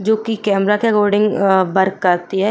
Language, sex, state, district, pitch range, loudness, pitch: Hindi, female, Uttar Pradesh, Jyotiba Phule Nagar, 190-215 Hz, -16 LUFS, 205 Hz